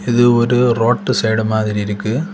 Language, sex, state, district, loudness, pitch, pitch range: Tamil, male, Tamil Nadu, Kanyakumari, -15 LUFS, 115 Hz, 110-120 Hz